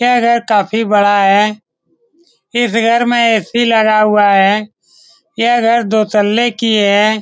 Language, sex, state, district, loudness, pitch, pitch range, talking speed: Hindi, male, Bihar, Saran, -12 LUFS, 220 Hz, 205-235 Hz, 160 wpm